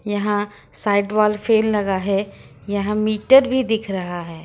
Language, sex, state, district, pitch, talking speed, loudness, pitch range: Hindi, female, Jharkhand, Ranchi, 210 Hz, 160 wpm, -19 LUFS, 200-215 Hz